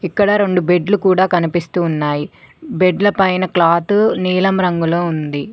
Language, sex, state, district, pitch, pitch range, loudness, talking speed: Telugu, female, Telangana, Mahabubabad, 180 Hz, 170-190 Hz, -15 LUFS, 130 wpm